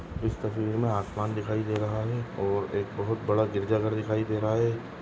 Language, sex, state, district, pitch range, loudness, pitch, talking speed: Hindi, male, Goa, North and South Goa, 105-110 Hz, -29 LUFS, 110 Hz, 205 wpm